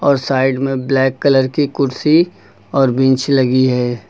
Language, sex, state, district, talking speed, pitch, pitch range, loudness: Hindi, male, Uttar Pradesh, Lucknow, 145 wpm, 135 Hz, 130-140 Hz, -15 LUFS